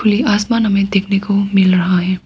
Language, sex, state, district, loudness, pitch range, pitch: Hindi, female, Arunachal Pradesh, Papum Pare, -14 LUFS, 190-210 Hz, 200 Hz